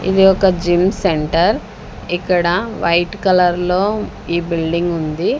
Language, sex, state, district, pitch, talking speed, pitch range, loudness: Telugu, female, Andhra Pradesh, Sri Satya Sai, 175 Hz, 110 wpm, 170-190 Hz, -16 LUFS